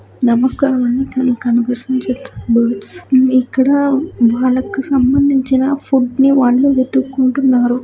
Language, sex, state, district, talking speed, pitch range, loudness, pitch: Telugu, female, Andhra Pradesh, Guntur, 90 wpm, 250-270 Hz, -14 LUFS, 260 Hz